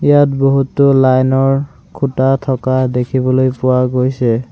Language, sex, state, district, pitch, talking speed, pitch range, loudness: Assamese, male, Assam, Sonitpur, 130 Hz, 120 wpm, 130-135 Hz, -13 LUFS